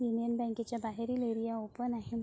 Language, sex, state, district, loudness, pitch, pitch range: Marathi, female, Maharashtra, Sindhudurg, -36 LUFS, 230 Hz, 230-240 Hz